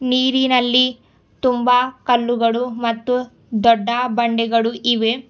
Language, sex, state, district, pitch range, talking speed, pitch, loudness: Kannada, female, Karnataka, Bidar, 230-250 Hz, 80 wpm, 245 Hz, -17 LUFS